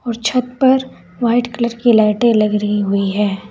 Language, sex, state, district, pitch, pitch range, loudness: Hindi, female, Uttar Pradesh, Saharanpur, 235 Hz, 210-245 Hz, -15 LUFS